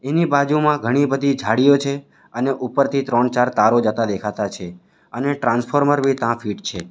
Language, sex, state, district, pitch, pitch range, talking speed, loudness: Gujarati, male, Gujarat, Valsad, 135 Hz, 115-140 Hz, 175 wpm, -19 LUFS